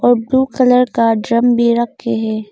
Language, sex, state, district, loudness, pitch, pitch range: Hindi, female, Arunachal Pradesh, Longding, -14 LUFS, 235 Hz, 225-245 Hz